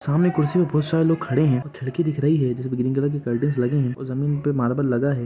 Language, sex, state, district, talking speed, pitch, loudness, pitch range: Hindi, male, Jharkhand, Sahebganj, 275 wpm, 140 Hz, -22 LUFS, 130-150 Hz